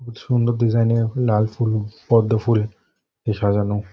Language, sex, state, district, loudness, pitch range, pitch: Bengali, male, West Bengal, North 24 Parganas, -20 LUFS, 105-120 Hz, 115 Hz